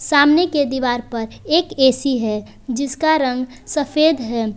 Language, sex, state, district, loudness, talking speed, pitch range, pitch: Hindi, female, Jharkhand, Palamu, -18 LUFS, 145 wpm, 245-300 Hz, 265 Hz